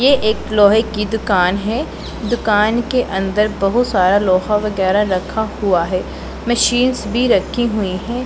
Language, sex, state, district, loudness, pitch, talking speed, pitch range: Hindi, female, Punjab, Pathankot, -16 LUFS, 210 Hz, 150 wpm, 195-235 Hz